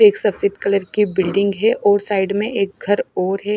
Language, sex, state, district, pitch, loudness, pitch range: Hindi, female, Himachal Pradesh, Shimla, 205 Hz, -18 LUFS, 195-210 Hz